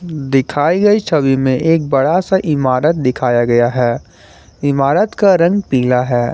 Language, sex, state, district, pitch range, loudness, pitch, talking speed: Hindi, male, Jharkhand, Garhwa, 125-165 Hz, -14 LUFS, 135 Hz, 150 wpm